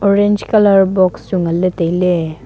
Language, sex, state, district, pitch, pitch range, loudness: Wancho, female, Arunachal Pradesh, Longding, 185 Hz, 170-200 Hz, -14 LUFS